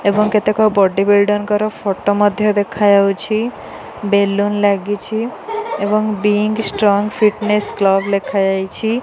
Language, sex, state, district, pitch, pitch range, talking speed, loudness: Odia, female, Odisha, Nuapada, 205 Hz, 200-215 Hz, 105 wpm, -16 LUFS